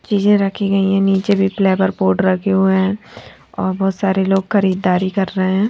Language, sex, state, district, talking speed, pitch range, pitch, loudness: Hindi, female, Bihar, Patna, 180 wpm, 190-195 Hz, 195 Hz, -16 LUFS